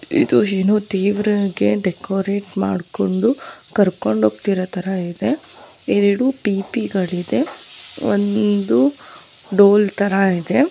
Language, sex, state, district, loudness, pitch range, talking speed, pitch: Kannada, female, Karnataka, Dharwad, -18 LUFS, 185-210 Hz, 90 wpm, 200 Hz